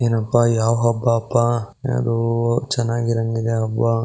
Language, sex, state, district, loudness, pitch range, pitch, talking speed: Kannada, male, Karnataka, Shimoga, -19 LUFS, 115-120 Hz, 115 Hz, 135 wpm